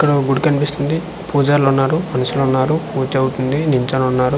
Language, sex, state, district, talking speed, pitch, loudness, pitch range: Telugu, male, Andhra Pradesh, Manyam, 165 wpm, 140 Hz, -17 LUFS, 130-150 Hz